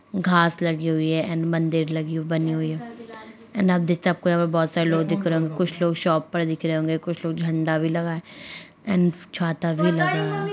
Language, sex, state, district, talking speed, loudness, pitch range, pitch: Hindi, male, Bihar, Sitamarhi, 200 wpm, -23 LUFS, 160-175 Hz, 165 Hz